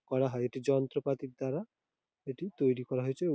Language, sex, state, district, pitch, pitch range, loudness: Bengali, male, West Bengal, Dakshin Dinajpur, 135 Hz, 130-140 Hz, -34 LUFS